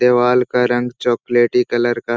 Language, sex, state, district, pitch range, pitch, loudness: Hindi, male, Bihar, Jahanabad, 120-125 Hz, 120 Hz, -16 LUFS